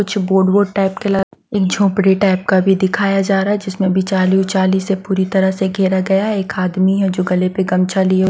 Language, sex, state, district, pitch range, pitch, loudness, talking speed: Hindi, female, Bihar, West Champaran, 190-195 Hz, 190 Hz, -15 LUFS, 225 wpm